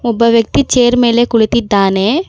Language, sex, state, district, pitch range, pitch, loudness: Kannada, female, Karnataka, Bangalore, 225-245 Hz, 235 Hz, -11 LUFS